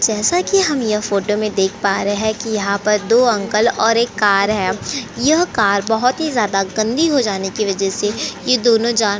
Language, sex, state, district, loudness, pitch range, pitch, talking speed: Hindi, female, Uttar Pradesh, Jyotiba Phule Nagar, -16 LUFS, 200-240 Hz, 215 Hz, 220 wpm